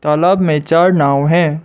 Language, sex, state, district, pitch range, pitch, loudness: Hindi, male, Arunachal Pradesh, Lower Dibang Valley, 150-175 Hz, 160 Hz, -12 LUFS